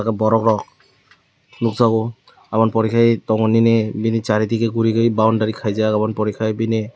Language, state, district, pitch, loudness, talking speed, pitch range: Kokborok, Tripura, West Tripura, 110 Hz, -18 LUFS, 155 wpm, 110-115 Hz